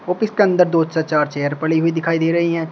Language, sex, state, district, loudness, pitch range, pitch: Hindi, male, Uttar Pradesh, Shamli, -17 LUFS, 160-170 Hz, 165 Hz